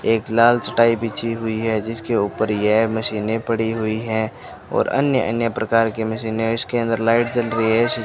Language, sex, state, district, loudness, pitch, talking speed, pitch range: Hindi, male, Rajasthan, Bikaner, -19 LUFS, 115 Hz, 195 wpm, 110-115 Hz